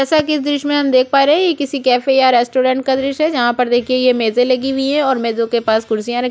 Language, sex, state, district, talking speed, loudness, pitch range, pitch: Hindi, female, Chhattisgarh, Korba, 315 wpm, -15 LUFS, 245-280 Hz, 260 Hz